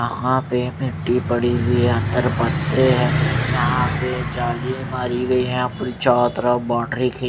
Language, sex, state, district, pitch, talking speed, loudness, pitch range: Hindi, male, Odisha, Malkangiri, 125 Hz, 155 wpm, -20 LUFS, 120-130 Hz